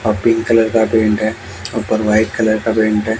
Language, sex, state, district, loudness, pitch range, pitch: Hindi, male, Bihar, West Champaran, -15 LUFS, 110-115 Hz, 110 Hz